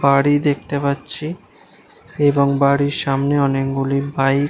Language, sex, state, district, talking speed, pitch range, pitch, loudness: Bengali, male, West Bengal, Malda, 120 wpm, 140-145 Hz, 140 Hz, -18 LUFS